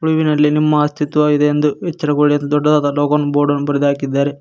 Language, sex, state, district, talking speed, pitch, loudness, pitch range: Kannada, male, Karnataka, Koppal, 135 wpm, 150 Hz, -15 LUFS, 145-150 Hz